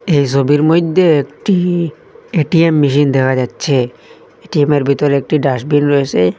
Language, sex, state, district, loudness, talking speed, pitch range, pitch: Bengali, male, Assam, Hailakandi, -13 LUFS, 120 wpm, 140-160 Hz, 145 Hz